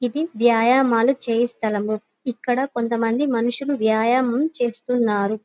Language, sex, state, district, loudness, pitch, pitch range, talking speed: Telugu, female, Andhra Pradesh, Guntur, -21 LUFS, 240 Hz, 225-255 Hz, 110 wpm